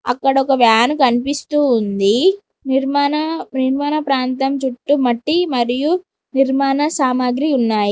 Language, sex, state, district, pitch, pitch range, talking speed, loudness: Telugu, female, Telangana, Mahabubabad, 270 Hz, 250-295 Hz, 105 wpm, -16 LUFS